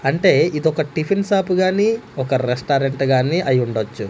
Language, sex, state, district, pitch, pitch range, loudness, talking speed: Telugu, male, Andhra Pradesh, Manyam, 140 Hz, 130-185 Hz, -18 LUFS, 130 wpm